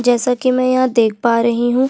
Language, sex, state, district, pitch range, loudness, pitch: Hindi, female, Chhattisgarh, Sukma, 235-255 Hz, -15 LUFS, 245 Hz